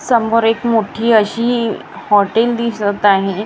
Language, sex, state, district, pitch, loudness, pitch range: Marathi, female, Maharashtra, Gondia, 225 Hz, -15 LUFS, 205-235 Hz